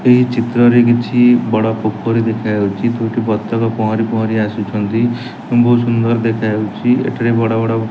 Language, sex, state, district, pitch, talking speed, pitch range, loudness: Odia, male, Odisha, Nuapada, 115 Hz, 145 wpm, 110-120 Hz, -15 LUFS